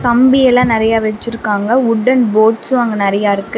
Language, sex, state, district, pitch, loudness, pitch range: Tamil, female, Tamil Nadu, Namakkal, 230 Hz, -12 LUFS, 215-250 Hz